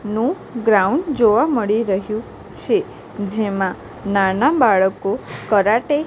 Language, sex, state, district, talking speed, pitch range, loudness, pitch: Gujarati, female, Gujarat, Gandhinagar, 110 wpm, 200-240 Hz, -18 LUFS, 215 Hz